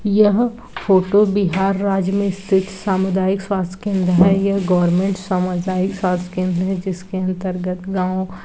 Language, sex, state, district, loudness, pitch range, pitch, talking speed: Hindi, female, Bihar, Saran, -18 LUFS, 185-195 Hz, 190 Hz, 135 wpm